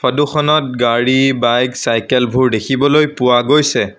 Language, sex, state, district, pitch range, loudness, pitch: Assamese, male, Assam, Sonitpur, 120-145 Hz, -13 LUFS, 130 Hz